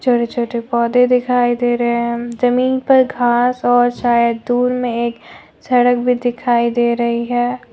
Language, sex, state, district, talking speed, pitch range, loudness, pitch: Hindi, female, Jharkhand, Deoghar, 165 wpm, 235-250 Hz, -16 LUFS, 245 Hz